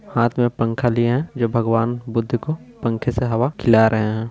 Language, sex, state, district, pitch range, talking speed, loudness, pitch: Hindi, male, Bihar, Purnia, 115-120 Hz, 195 wpm, -20 LUFS, 120 Hz